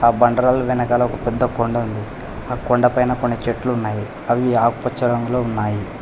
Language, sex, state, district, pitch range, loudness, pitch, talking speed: Telugu, male, Telangana, Hyderabad, 115-125 Hz, -19 LUFS, 120 Hz, 160 wpm